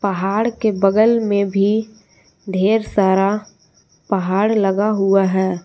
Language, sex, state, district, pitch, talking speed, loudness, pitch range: Hindi, female, Jharkhand, Palamu, 200 Hz, 115 wpm, -17 LUFS, 190-215 Hz